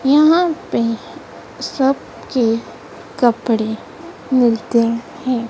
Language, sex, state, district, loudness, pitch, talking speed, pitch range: Hindi, female, Madhya Pradesh, Dhar, -17 LUFS, 240 Hz, 75 wpm, 230-270 Hz